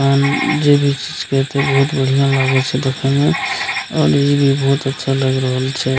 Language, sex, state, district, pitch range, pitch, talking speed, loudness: Maithili, male, Bihar, Begusarai, 130-140 Hz, 135 Hz, 200 wpm, -15 LUFS